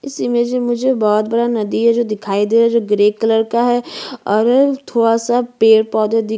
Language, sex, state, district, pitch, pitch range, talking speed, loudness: Hindi, female, Chhattisgarh, Bastar, 230 Hz, 220-240 Hz, 225 wpm, -15 LUFS